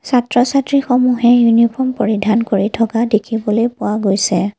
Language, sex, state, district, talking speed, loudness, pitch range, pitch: Assamese, female, Assam, Kamrup Metropolitan, 130 wpm, -14 LUFS, 215-245 Hz, 230 Hz